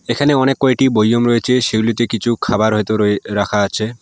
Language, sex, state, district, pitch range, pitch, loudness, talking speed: Bengali, male, West Bengal, Alipurduar, 110-125 Hz, 115 Hz, -15 LUFS, 180 wpm